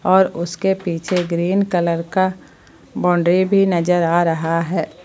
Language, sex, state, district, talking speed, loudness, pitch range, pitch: Hindi, female, Jharkhand, Palamu, 145 wpm, -18 LUFS, 170-185 Hz, 175 Hz